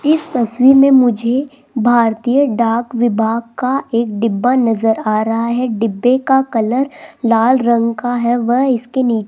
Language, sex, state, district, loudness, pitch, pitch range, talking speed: Hindi, female, Rajasthan, Jaipur, -14 LUFS, 240 Hz, 230-260 Hz, 160 wpm